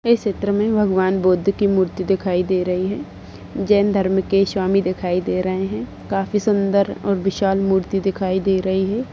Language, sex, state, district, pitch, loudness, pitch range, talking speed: Hindi, female, Uttar Pradesh, Budaun, 195 Hz, -19 LUFS, 185-200 Hz, 185 wpm